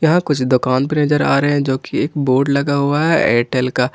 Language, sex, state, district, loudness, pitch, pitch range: Hindi, male, Jharkhand, Ranchi, -16 LUFS, 140 Hz, 130-150 Hz